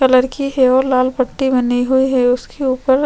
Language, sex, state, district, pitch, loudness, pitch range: Hindi, female, Chhattisgarh, Sukma, 260 Hz, -15 LUFS, 255-265 Hz